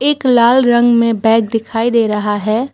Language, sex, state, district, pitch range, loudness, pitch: Hindi, female, Assam, Kamrup Metropolitan, 225-240 Hz, -13 LUFS, 230 Hz